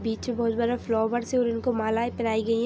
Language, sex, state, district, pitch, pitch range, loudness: Hindi, female, Jharkhand, Sahebganj, 230 Hz, 225-240 Hz, -26 LUFS